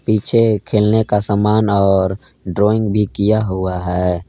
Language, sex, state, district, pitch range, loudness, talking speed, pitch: Hindi, male, Jharkhand, Palamu, 95-110 Hz, -16 LUFS, 140 wpm, 105 Hz